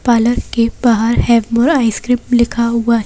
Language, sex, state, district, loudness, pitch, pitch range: Hindi, female, Madhya Pradesh, Bhopal, -14 LUFS, 235 Hz, 230-240 Hz